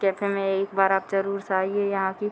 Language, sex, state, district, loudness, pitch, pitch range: Hindi, female, Bihar, Muzaffarpur, -24 LUFS, 195 Hz, 195-200 Hz